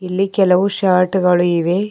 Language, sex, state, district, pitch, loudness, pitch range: Kannada, female, Karnataka, Bidar, 185 Hz, -15 LUFS, 180-195 Hz